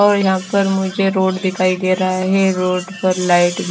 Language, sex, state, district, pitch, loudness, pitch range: Hindi, female, Himachal Pradesh, Shimla, 190 Hz, -16 LUFS, 185-195 Hz